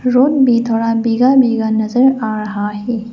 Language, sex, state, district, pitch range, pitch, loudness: Hindi, female, Arunachal Pradesh, Lower Dibang Valley, 220-250 Hz, 230 Hz, -14 LUFS